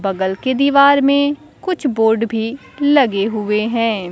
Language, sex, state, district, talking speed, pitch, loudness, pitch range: Hindi, female, Bihar, Kaimur, 145 wpm, 230 Hz, -16 LUFS, 215-280 Hz